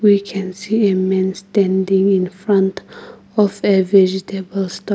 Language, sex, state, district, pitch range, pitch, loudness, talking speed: English, female, Nagaland, Kohima, 190-200 Hz, 195 Hz, -17 LUFS, 145 wpm